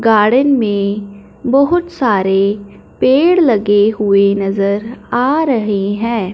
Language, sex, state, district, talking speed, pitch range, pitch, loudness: Hindi, female, Punjab, Fazilka, 105 wpm, 200-255 Hz, 210 Hz, -13 LUFS